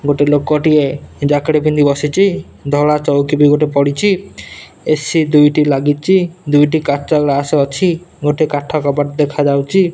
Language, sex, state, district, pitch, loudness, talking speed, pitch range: Odia, male, Odisha, Nuapada, 145 Hz, -14 LUFS, 135 wpm, 145-155 Hz